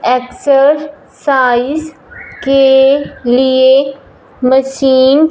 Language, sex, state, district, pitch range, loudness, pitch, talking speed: Hindi, male, Punjab, Fazilka, 260-285 Hz, -11 LUFS, 270 Hz, 55 wpm